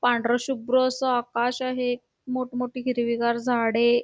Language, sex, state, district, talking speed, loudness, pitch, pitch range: Marathi, female, Karnataka, Belgaum, 135 wpm, -25 LUFS, 245 Hz, 240-255 Hz